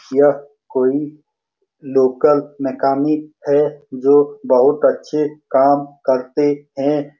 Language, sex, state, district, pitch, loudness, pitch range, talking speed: Hindi, male, Bihar, Saran, 145 Hz, -17 LUFS, 135-150 Hz, 90 wpm